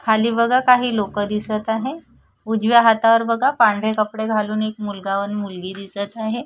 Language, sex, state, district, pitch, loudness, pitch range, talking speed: Marathi, female, Maharashtra, Sindhudurg, 220 Hz, -19 LUFS, 205-230 Hz, 175 wpm